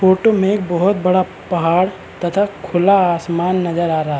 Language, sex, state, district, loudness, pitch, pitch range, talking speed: Hindi, male, Uttarakhand, Uttarkashi, -16 LUFS, 185 Hz, 170-190 Hz, 185 wpm